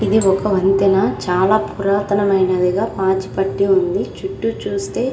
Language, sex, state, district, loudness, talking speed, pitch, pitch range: Telugu, female, Andhra Pradesh, Krishna, -17 LUFS, 130 wpm, 195 Hz, 190-210 Hz